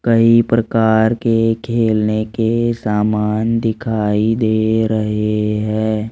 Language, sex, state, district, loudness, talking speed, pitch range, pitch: Hindi, male, Rajasthan, Jaipur, -16 LUFS, 100 wpm, 110-115 Hz, 110 Hz